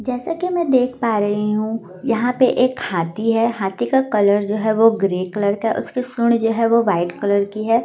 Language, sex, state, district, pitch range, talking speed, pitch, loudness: Hindi, female, Delhi, New Delhi, 205-245 Hz, 230 wpm, 225 Hz, -18 LUFS